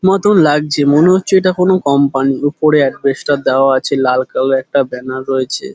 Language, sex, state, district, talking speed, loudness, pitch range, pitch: Bengali, male, West Bengal, Dakshin Dinajpur, 190 wpm, -13 LUFS, 135-155 Hz, 140 Hz